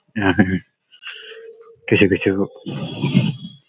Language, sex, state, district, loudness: Bengali, male, West Bengal, Malda, -19 LUFS